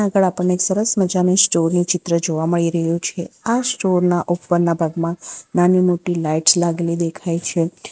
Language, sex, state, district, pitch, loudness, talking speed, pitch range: Gujarati, female, Gujarat, Valsad, 175 Hz, -18 LUFS, 180 wpm, 170-180 Hz